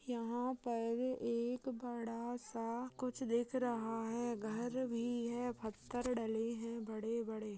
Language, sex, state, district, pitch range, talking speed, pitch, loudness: Hindi, female, Chhattisgarh, Raigarh, 230-245 Hz, 125 wpm, 235 Hz, -41 LUFS